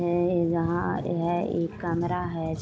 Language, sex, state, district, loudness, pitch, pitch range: Hindi, female, Jharkhand, Sahebganj, -27 LUFS, 170 Hz, 170-175 Hz